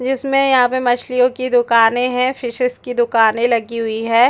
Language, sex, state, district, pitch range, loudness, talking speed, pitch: Hindi, female, Chhattisgarh, Bastar, 235-255 Hz, -16 LUFS, 180 wpm, 245 Hz